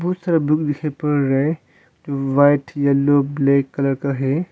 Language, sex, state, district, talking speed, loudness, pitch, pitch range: Hindi, male, Arunachal Pradesh, Longding, 185 wpm, -19 LUFS, 145 Hz, 140-150 Hz